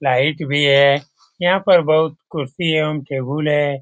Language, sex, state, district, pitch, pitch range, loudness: Hindi, male, Bihar, Lakhisarai, 150 Hz, 140-160 Hz, -17 LUFS